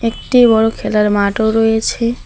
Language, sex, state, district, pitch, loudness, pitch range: Bengali, female, West Bengal, Alipurduar, 225 Hz, -13 LUFS, 215-230 Hz